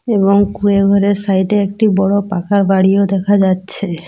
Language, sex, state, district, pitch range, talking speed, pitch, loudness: Bengali, female, West Bengal, Dakshin Dinajpur, 195-200 Hz, 160 wpm, 200 Hz, -13 LUFS